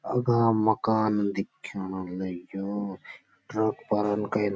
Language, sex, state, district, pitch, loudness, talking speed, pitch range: Garhwali, male, Uttarakhand, Uttarkashi, 105 Hz, -28 LUFS, 120 wpm, 95-110 Hz